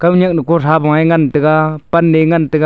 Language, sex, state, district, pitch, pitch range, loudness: Wancho, male, Arunachal Pradesh, Longding, 160 Hz, 155-170 Hz, -12 LUFS